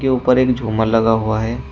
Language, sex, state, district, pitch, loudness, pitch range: Hindi, male, Uttar Pradesh, Shamli, 115 Hz, -16 LUFS, 110-125 Hz